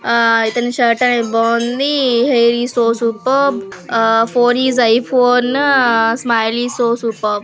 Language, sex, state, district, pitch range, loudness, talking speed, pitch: Telugu, female, Andhra Pradesh, Krishna, 230-250 Hz, -14 LUFS, 130 wpm, 235 Hz